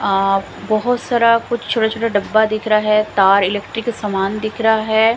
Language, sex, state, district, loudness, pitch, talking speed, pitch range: Hindi, female, Bihar, Katihar, -16 LUFS, 215 Hz, 195 wpm, 205-230 Hz